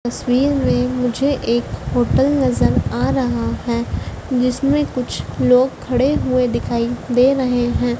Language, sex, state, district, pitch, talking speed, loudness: Hindi, female, Madhya Pradesh, Dhar, 245 Hz, 135 wpm, -18 LUFS